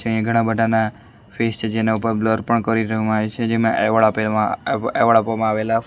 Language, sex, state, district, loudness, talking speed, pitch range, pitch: Gujarati, male, Gujarat, Valsad, -19 LUFS, 175 wpm, 110-115 Hz, 110 Hz